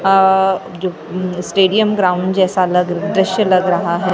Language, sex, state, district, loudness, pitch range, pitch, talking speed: Hindi, female, Maharashtra, Gondia, -15 LUFS, 180-190 Hz, 185 Hz, 175 wpm